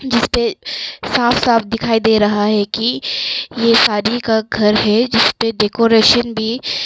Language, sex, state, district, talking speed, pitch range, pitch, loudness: Hindi, female, Arunachal Pradesh, Longding, 150 wpm, 215-235 Hz, 225 Hz, -14 LUFS